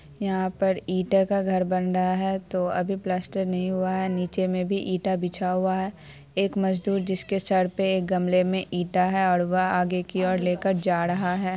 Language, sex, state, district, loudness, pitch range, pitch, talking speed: Hindi, female, Bihar, Saharsa, -25 LUFS, 180-190 Hz, 185 Hz, 195 wpm